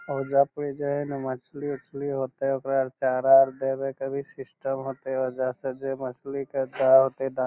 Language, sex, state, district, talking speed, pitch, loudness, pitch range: Magahi, male, Bihar, Lakhisarai, 175 wpm, 135 Hz, -26 LUFS, 130-140 Hz